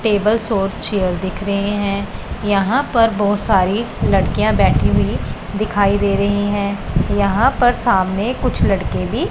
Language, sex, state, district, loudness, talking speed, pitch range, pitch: Hindi, female, Punjab, Pathankot, -17 LUFS, 150 wpm, 200-215 Hz, 205 Hz